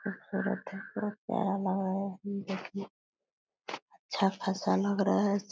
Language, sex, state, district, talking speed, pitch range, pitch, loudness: Hindi, female, Bihar, Purnia, 130 wpm, 195-200 Hz, 195 Hz, -32 LUFS